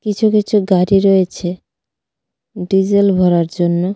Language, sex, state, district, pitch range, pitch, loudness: Bengali, female, Tripura, West Tripura, 180-200 Hz, 190 Hz, -14 LUFS